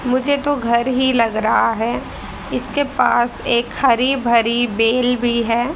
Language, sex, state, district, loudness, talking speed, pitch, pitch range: Hindi, female, Haryana, Rohtak, -17 LUFS, 165 wpm, 240 Hz, 235-255 Hz